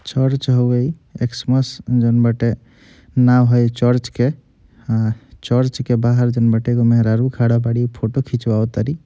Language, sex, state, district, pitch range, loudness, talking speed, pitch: Bhojpuri, male, Bihar, Gopalganj, 115-125 Hz, -17 LUFS, 160 wpm, 120 Hz